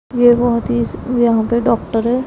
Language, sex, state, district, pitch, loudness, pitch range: Hindi, female, Punjab, Pathankot, 235 Hz, -15 LUFS, 225-245 Hz